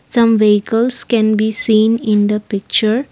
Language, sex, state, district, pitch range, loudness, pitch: English, female, Assam, Kamrup Metropolitan, 215-230 Hz, -14 LUFS, 220 Hz